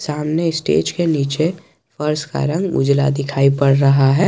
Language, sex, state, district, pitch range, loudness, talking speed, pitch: Hindi, male, Jharkhand, Garhwa, 140-160 Hz, -17 LUFS, 170 wpm, 150 Hz